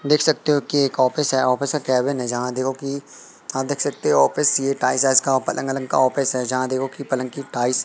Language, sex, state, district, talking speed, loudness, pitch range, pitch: Hindi, male, Madhya Pradesh, Katni, 250 wpm, -20 LUFS, 130-140 Hz, 135 Hz